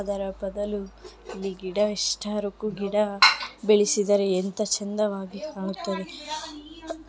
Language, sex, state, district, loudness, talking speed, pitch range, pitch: Kannada, female, Karnataka, Shimoga, -25 LUFS, 60 wpm, 195-215 Hz, 205 Hz